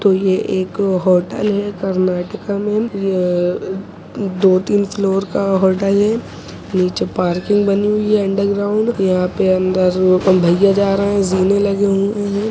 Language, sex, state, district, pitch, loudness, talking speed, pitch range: Hindi, male, Chhattisgarh, Rajnandgaon, 195 Hz, -16 LUFS, 135 wpm, 185-205 Hz